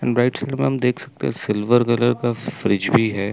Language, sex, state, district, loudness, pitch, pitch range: Hindi, male, Chandigarh, Chandigarh, -20 LUFS, 120 Hz, 115-125 Hz